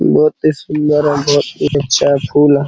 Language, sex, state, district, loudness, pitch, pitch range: Hindi, male, Bihar, Araria, -13 LUFS, 145 Hz, 140-150 Hz